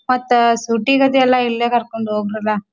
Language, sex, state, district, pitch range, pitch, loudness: Kannada, female, Karnataka, Dharwad, 220-255 Hz, 235 Hz, -16 LUFS